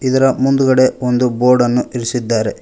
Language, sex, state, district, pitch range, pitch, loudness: Kannada, male, Karnataka, Koppal, 120-130 Hz, 125 Hz, -14 LUFS